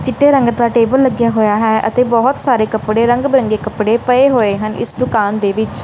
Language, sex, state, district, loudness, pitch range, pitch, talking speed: Punjabi, female, Punjab, Kapurthala, -13 LUFS, 215-255 Hz, 230 Hz, 215 wpm